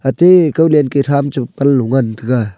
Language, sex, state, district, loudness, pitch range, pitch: Wancho, male, Arunachal Pradesh, Longding, -13 LUFS, 130-150 Hz, 140 Hz